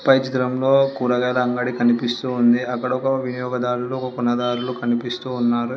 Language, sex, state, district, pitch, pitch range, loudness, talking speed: Telugu, female, Telangana, Hyderabad, 125 Hz, 120-130 Hz, -21 LUFS, 105 wpm